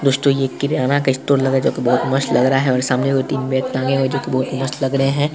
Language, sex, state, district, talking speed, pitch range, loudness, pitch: Hindi, male, Bihar, Saharsa, 325 wpm, 130-135 Hz, -18 LUFS, 135 Hz